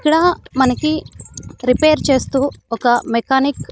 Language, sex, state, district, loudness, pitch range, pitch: Telugu, female, Andhra Pradesh, Annamaya, -16 LUFS, 250-310 Hz, 270 Hz